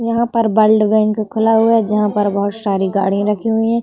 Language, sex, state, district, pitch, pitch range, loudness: Hindi, female, Uttar Pradesh, Varanasi, 215 Hz, 205-225 Hz, -15 LUFS